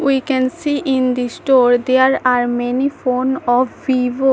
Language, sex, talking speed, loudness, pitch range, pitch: English, female, 165 wpm, -16 LUFS, 250-265 Hz, 260 Hz